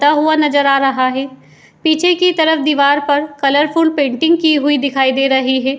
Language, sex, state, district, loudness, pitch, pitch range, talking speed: Hindi, female, Uttar Pradesh, Etah, -13 LUFS, 285 Hz, 270-315 Hz, 220 wpm